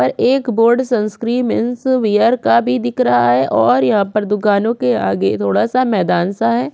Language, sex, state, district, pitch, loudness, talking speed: Hindi, female, Chhattisgarh, Korba, 215 Hz, -15 LUFS, 215 wpm